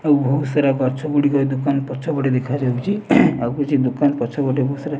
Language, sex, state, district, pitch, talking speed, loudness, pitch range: Odia, male, Odisha, Nuapada, 140 Hz, 180 wpm, -19 LUFS, 130-145 Hz